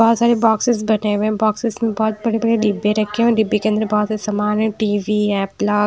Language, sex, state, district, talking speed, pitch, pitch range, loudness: Hindi, female, Punjab, Kapurthala, 245 wpm, 215 Hz, 210-225 Hz, -18 LUFS